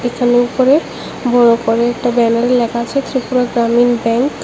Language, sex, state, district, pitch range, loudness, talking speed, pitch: Bengali, male, Tripura, West Tripura, 235-250 Hz, -14 LUFS, 160 wpm, 245 Hz